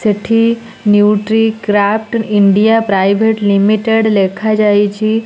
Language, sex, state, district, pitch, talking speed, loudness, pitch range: Odia, female, Odisha, Nuapada, 215 Hz, 70 wpm, -12 LUFS, 205-220 Hz